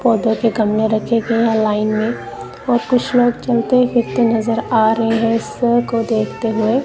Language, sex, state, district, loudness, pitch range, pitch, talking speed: Hindi, female, Punjab, Kapurthala, -16 LUFS, 220-240 Hz, 230 Hz, 175 wpm